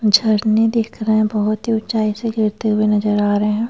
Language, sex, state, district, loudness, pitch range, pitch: Hindi, female, Goa, North and South Goa, -17 LUFS, 210-220 Hz, 215 Hz